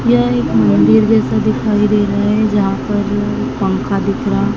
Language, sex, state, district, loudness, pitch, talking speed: Hindi, female, Madhya Pradesh, Dhar, -14 LUFS, 210 Hz, 170 wpm